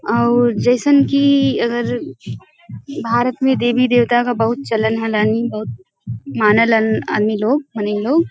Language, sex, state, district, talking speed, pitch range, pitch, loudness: Bhojpuri, female, Uttar Pradesh, Varanasi, 135 wpm, 220-260 Hz, 235 Hz, -16 LUFS